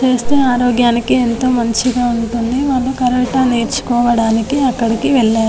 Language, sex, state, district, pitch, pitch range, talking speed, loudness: Telugu, female, Telangana, Nalgonda, 245 Hz, 235-255 Hz, 110 wpm, -14 LUFS